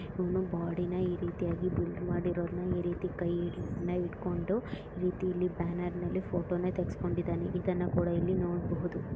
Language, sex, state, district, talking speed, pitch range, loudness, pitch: Kannada, female, Karnataka, Raichur, 125 wpm, 175-180 Hz, -34 LUFS, 175 Hz